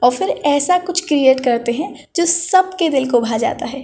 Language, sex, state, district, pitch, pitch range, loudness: Hindi, female, Chhattisgarh, Balrampur, 285 Hz, 245-345 Hz, -16 LUFS